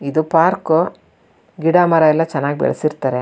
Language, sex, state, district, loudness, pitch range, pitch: Kannada, female, Karnataka, Shimoga, -16 LUFS, 155-165 Hz, 160 Hz